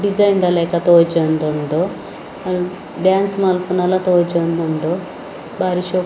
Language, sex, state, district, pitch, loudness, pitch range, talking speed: Tulu, female, Karnataka, Dakshina Kannada, 180 Hz, -17 LUFS, 170-185 Hz, 90 wpm